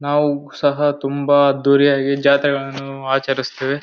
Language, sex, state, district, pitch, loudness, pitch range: Kannada, male, Karnataka, Bellary, 140 Hz, -17 LUFS, 135-145 Hz